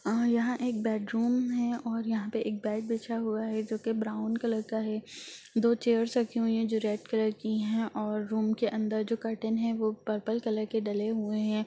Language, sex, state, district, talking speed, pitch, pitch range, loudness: Hindi, female, Bihar, Jahanabad, 210 wpm, 225 Hz, 215-230 Hz, -31 LUFS